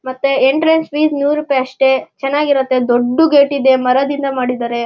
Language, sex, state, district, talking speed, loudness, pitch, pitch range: Kannada, male, Karnataka, Shimoga, 160 wpm, -14 LUFS, 270 Hz, 255-285 Hz